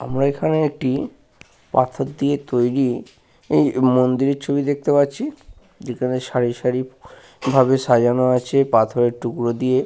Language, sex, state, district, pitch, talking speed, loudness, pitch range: Bengali, male, West Bengal, Paschim Medinipur, 130 Hz, 115 wpm, -19 LUFS, 125-140 Hz